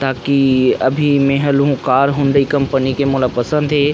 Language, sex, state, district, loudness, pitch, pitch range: Chhattisgarhi, male, Chhattisgarh, Rajnandgaon, -14 LUFS, 140 Hz, 135-145 Hz